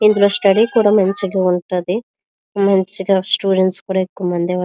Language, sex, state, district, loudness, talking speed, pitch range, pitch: Telugu, female, Andhra Pradesh, Visakhapatnam, -16 LUFS, 130 wpm, 185-200 Hz, 195 Hz